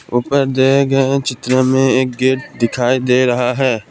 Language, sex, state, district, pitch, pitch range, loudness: Hindi, male, Assam, Kamrup Metropolitan, 130 Hz, 125-135 Hz, -15 LUFS